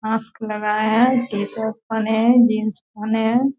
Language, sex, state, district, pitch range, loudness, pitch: Hindi, female, Bihar, Purnia, 215-230 Hz, -19 LUFS, 220 Hz